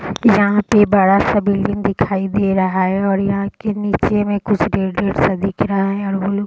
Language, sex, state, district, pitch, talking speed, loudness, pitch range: Hindi, female, Bihar, Sitamarhi, 200 Hz, 240 wpm, -16 LUFS, 195-205 Hz